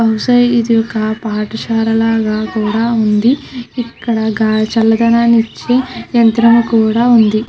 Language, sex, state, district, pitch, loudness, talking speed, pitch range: Telugu, female, Andhra Pradesh, Krishna, 225 Hz, -13 LUFS, 110 wpm, 220-235 Hz